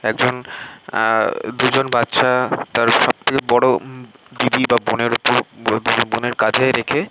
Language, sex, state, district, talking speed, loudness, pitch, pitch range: Bengali, male, West Bengal, Malda, 120 wpm, -17 LUFS, 125 Hz, 115-130 Hz